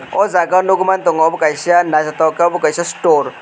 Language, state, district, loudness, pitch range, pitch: Kokborok, Tripura, West Tripura, -14 LUFS, 160-185 Hz, 170 Hz